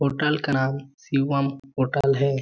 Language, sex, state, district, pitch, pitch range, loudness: Hindi, male, Chhattisgarh, Balrampur, 140 Hz, 135-140 Hz, -24 LUFS